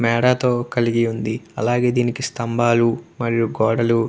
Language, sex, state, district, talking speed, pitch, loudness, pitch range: Telugu, male, Andhra Pradesh, Krishna, 130 wpm, 115 Hz, -20 LUFS, 115-120 Hz